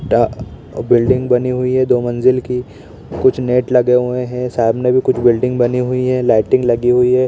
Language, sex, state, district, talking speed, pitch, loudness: Hindi, male, Bihar, East Champaran, 200 wpm, 125 Hz, -15 LUFS